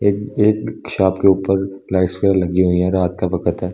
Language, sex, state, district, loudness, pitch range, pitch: Hindi, male, Delhi, New Delhi, -17 LUFS, 90-100 Hz, 95 Hz